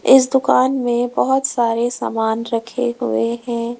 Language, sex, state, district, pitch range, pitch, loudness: Hindi, female, Uttar Pradesh, Lalitpur, 230-255 Hz, 240 Hz, -18 LUFS